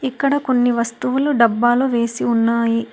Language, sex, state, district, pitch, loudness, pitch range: Telugu, female, Telangana, Hyderabad, 240 Hz, -17 LUFS, 235-260 Hz